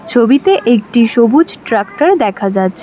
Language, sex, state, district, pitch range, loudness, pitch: Bengali, female, West Bengal, Alipurduar, 205-285 Hz, -11 LUFS, 235 Hz